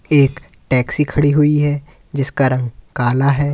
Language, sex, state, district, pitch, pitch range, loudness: Hindi, male, Uttar Pradesh, Lalitpur, 140 Hz, 130-150 Hz, -16 LUFS